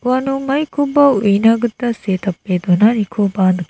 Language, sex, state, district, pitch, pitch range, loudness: Garo, female, Meghalaya, South Garo Hills, 220 Hz, 190-260 Hz, -15 LUFS